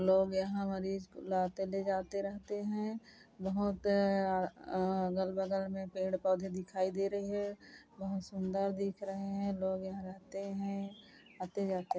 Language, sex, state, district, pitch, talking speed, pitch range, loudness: Hindi, female, Chhattisgarh, Kabirdham, 195 Hz, 155 wpm, 190-200 Hz, -37 LUFS